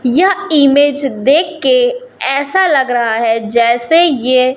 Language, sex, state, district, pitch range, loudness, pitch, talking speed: Hindi, female, Madhya Pradesh, Umaria, 250-335 Hz, -12 LUFS, 275 Hz, 130 wpm